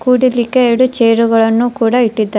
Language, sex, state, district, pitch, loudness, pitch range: Kannada, female, Karnataka, Dharwad, 235 Hz, -12 LUFS, 225-250 Hz